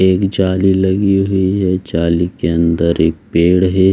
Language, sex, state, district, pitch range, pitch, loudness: Hindi, male, Bihar, Saran, 85-95 Hz, 95 Hz, -14 LUFS